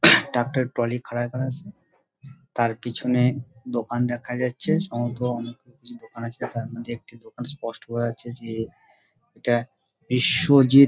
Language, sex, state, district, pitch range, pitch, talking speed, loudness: Bengali, male, West Bengal, Dakshin Dinajpur, 120-130 Hz, 120 Hz, 125 wpm, -25 LUFS